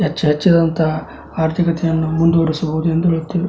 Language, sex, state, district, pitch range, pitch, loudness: Kannada, male, Karnataka, Dharwad, 160-170 Hz, 165 Hz, -16 LUFS